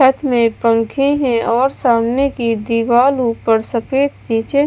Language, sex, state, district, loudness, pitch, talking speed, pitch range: Hindi, female, Bihar, West Champaran, -15 LUFS, 240 Hz, 140 wpm, 230-270 Hz